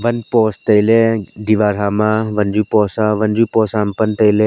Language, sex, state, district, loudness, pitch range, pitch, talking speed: Wancho, male, Arunachal Pradesh, Longding, -15 LUFS, 105-110 Hz, 110 Hz, 175 wpm